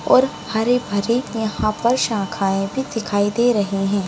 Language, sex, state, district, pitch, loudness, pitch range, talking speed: Hindi, female, Bihar, Saharsa, 220 Hz, -20 LUFS, 200-240 Hz, 145 wpm